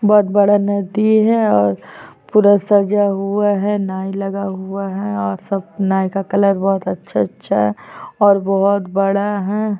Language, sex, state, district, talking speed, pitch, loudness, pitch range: Hindi, female, Chhattisgarh, Sukma, 160 wpm, 200 Hz, -16 LUFS, 195-205 Hz